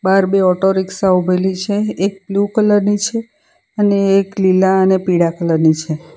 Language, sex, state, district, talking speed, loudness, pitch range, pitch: Gujarati, female, Gujarat, Valsad, 185 wpm, -15 LUFS, 185-205 Hz, 190 Hz